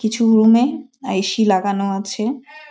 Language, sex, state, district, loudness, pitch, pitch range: Bengali, female, West Bengal, Malda, -17 LUFS, 225 Hz, 200-260 Hz